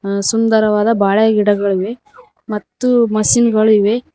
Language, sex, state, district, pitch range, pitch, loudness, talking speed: Kannada, female, Karnataka, Koppal, 205-230 Hz, 215 Hz, -13 LUFS, 115 wpm